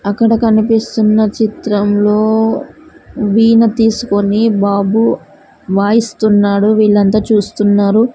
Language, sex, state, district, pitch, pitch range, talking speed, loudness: Telugu, female, Andhra Pradesh, Sri Satya Sai, 215 Hz, 205-225 Hz, 65 wpm, -12 LUFS